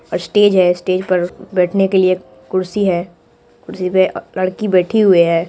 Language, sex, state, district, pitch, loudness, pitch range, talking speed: Hindi, female, Bihar, Purnia, 185 Hz, -15 LUFS, 180-190 Hz, 165 wpm